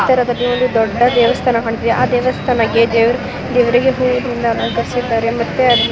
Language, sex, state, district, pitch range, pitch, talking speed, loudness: Kannada, female, Karnataka, Mysore, 230-250 Hz, 245 Hz, 140 wpm, -15 LUFS